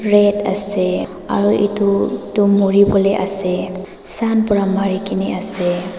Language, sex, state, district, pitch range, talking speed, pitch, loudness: Nagamese, female, Nagaland, Dimapur, 190-205 Hz, 110 wpm, 200 Hz, -17 LUFS